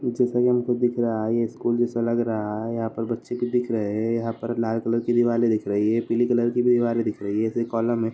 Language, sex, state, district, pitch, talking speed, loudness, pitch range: Hindi, male, Uttar Pradesh, Deoria, 115 Hz, 265 wpm, -24 LUFS, 115-120 Hz